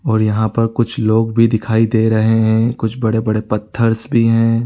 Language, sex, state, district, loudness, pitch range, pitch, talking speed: Sadri, male, Chhattisgarh, Jashpur, -15 LUFS, 110-115 Hz, 115 Hz, 220 wpm